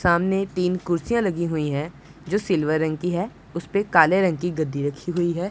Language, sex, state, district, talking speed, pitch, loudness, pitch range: Hindi, female, Punjab, Pathankot, 205 wpm, 175 Hz, -23 LUFS, 160-185 Hz